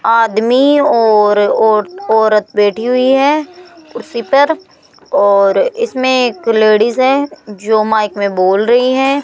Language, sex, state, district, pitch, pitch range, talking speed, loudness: Hindi, female, Rajasthan, Jaipur, 230 Hz, 210-275 Hz, 125 wpm, -12 LUFS